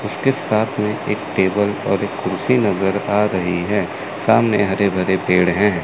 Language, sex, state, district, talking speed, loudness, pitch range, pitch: Hindi, male, Chandigarh, Chandigarh, 165 wpm, -18 LUFS, 95-105 Hz, 100 Hz